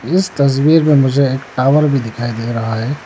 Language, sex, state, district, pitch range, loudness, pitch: Hindi, male, Arunachal Pradesh, Lower Dibang Valley, 120-150 Hz, -14 LUFS, 135 Hz